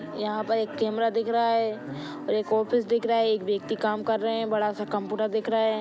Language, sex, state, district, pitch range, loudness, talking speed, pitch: Hindi, female, Bihar, Saran, 215-225 Hz, -26 LUFS, 195 wpm, 220 Hz